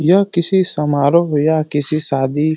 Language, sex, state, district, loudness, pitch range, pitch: Hindi, male, Uttar Pradesh, Deoria, -15 LUFS, 145-170 Hz, 155 Hz